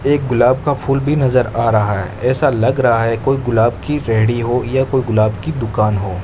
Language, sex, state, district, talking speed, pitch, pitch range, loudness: Hindi, male, Rajasthan, Bikaner, 230 wpm, 120 Hz, 110-135 Hz, -16 LUFS